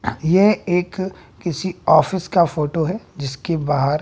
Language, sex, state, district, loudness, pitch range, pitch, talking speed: Hindi, male, Bihar, West Champaran, -19 LUFS, 150-185 Hz, 170 Hz, 135 wpm